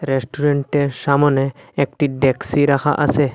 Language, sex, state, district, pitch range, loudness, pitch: Bengali, male, Assam, Hailakandi, 135-145 Hz, -18 LUFS, 140 Hz